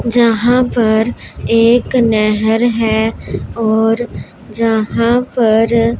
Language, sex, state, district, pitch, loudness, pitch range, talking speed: Hindi, female, Punjab, Pathankot, 230 Hz, -13 LUFS, 220-235 Hz, 80 wpm